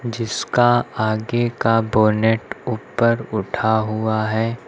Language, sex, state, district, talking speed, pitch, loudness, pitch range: Hindi, male, Uttar Pradesh, Lucknow, 105 wpm, 110 Hz, -19 LUFS, 110-120 Hz